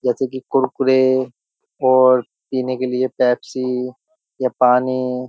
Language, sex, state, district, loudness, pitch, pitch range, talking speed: Hindi, male, Uttar Pradesh, Jyotiba Phule Nagar, -18 LUFS, 130 Hz, 125-130 Hz, 125 wpm